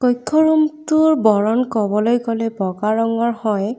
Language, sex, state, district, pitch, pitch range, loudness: Assamese, female, Assam, Kamrup Metropolitan, 230 Hz, 215-265 Hz, -17 LUFS